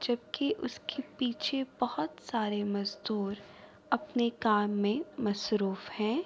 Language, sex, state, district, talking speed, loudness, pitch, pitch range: Urdu, female, Andhra Pradesh, Anantapur, 105 wpm, -33 LUFS, 215 Hz, 205-250 Hz